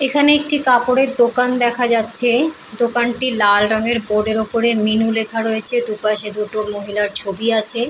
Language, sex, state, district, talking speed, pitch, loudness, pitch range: Bengali, female, West Bengal, Purulia, 145 wpm, 225 Hz, -15 LUFS, 215-240 Hz